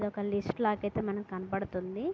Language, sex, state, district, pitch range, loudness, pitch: Telugu, female, Andhra Pradesh, Guntur, 195-210 Hz, -34 LUFS, 205 Hz